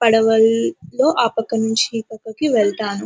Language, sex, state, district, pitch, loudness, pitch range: Telugu, female, Andhra Pradesh, Anantapur, 225 Hz, -17 LUFS, 210-225 Hz